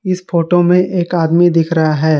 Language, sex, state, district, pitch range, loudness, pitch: Hindi, male, Jharkhand, Garhwa, 165-180 Hz, -13 LUFS, 170 Hz